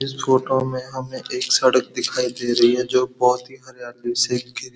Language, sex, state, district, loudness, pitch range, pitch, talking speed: Hindi, male, Uttar Pradesh, Muzaffarnagar, -20 LUFS, 125-130 Hz, 125 Hz, 215 wpm